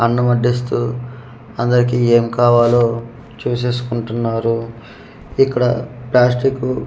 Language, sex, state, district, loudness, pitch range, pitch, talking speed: Telugu, male, Andhra Pradesh, Manyam, -16 LUFS, 115-125 Hz, 120 Hz, 80 wpm